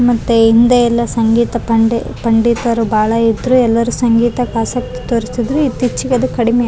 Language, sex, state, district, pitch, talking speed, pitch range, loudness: Kannada, female, Karnataka, Raichur, 235 Hz, 115 wpm, 230-245 Hz, -13 LUFS